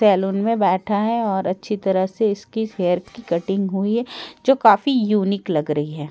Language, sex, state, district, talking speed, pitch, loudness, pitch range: Hindi, female, Bihar, Katihar, 195 wpm, 200 Hz, -20 LUFS, 185-220 Hz